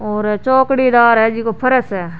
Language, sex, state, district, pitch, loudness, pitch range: Rajasthani, female, Rajasthan, Churu, 230 Hz, -14 LUFS, 210-255 Hz